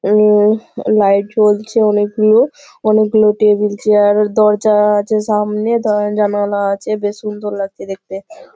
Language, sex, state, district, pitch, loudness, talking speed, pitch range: Bengali, female, West Bengal, Malda, 210 Hz, -14 LUFS, 125 wpm, 205-215 Hz